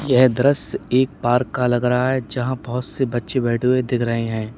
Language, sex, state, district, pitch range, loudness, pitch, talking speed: Hindi, male, Uttar Pradesh, Lalitpur, 120-130 Hz, -19 LUFS, 125 Hz, 220 wpm